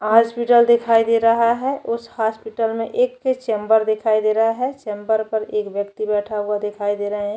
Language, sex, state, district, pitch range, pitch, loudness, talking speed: Hindi, female, Chhattisgarh, Jashpur, 210-230 Hz, 220 Hz, -19 LUFS, 195 wpm